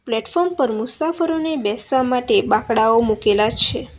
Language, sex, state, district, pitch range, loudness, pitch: Gujarati, female, Gujarat, Valsad, 220-320 Hz, -18 LUFS, 240 Hz